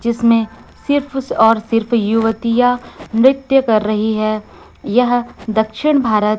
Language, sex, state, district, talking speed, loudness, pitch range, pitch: Hindi, female, Chhattisgarh, Raipur, 110 wpm, -15 LUFS, 220-245 Hz, 230 Hz